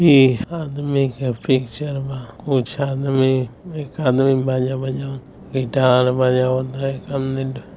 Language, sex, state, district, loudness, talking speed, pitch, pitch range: Hindi, male, Bihar, East Champaran, -20 LUFS, 125 wpm, 135 Hz, 130-140 Hz